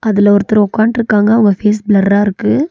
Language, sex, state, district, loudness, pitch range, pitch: Tamil, female, Tamil Nadu, Nilgiris, -11 LUFS, 205-220 Hz, 210 Hz